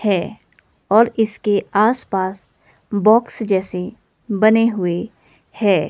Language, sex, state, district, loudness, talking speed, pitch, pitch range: Hindi, female, Himachal Pradesh, Shimla, -18 LUFS, 90 wpm, 210 Hz, 190-225 Hz